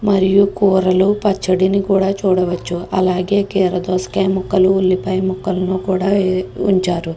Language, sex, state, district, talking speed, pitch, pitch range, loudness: Telugu, female, Andhra Pradesh, Guntur, 115 wpm, 190 Hz, 185-195 Hz, -16 LUFS